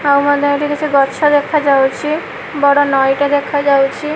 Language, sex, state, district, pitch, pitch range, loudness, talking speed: Odia, female, Odisha, Malkangiri, 285 Hz, 280-295 Hz, -13 LUFS, 145 wpm